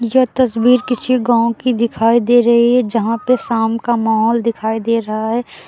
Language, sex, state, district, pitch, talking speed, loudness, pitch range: Hindi, female, Uttar Pradesh, Lucknow, 235 Hz, 190 wpm, -15 LUFS, 225-245 Hz